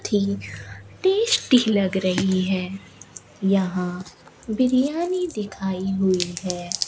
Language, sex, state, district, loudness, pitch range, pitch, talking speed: Hindi, female, Rajasthan, Bikaner, -22 LUFS, 180-215 Hz, 190 Hz, 80 wpm